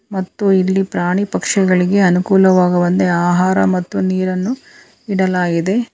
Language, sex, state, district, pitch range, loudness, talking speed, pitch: Kannada, female, Karnataka, Bangalore, 180-195 Hz, -15 LUFS, 90 wpm, 185 Hz